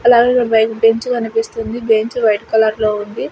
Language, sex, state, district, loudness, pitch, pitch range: Telugu, female, Andhra Pradesh, Sri Satya Sai, -15 LUFS, 225 Hz, 220-235 Hz